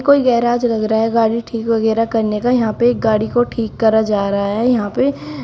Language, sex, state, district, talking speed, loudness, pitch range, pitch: Hindi, female, Uttar Pradesh, Shamli, 255 wpm, -16 LUFS, 220-240 Hz, 230 Hz